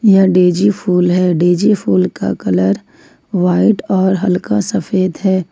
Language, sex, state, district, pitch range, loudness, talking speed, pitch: Hindi, female, Jharkhand, Ranchi, 175-190 Hz, -14 LUFS, 140 wpm, 185 Hz